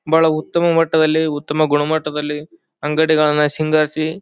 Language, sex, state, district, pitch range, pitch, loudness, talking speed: Kannada, male, Karnataka, Bijapur, 150-160 Hz, 155 Hz, -17 LUFS, 115 wpm